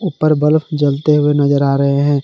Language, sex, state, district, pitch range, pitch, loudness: Hindi, male, Jharkhand, Garhwa, 140-155 Hz, 145 Hz, -14 LUFS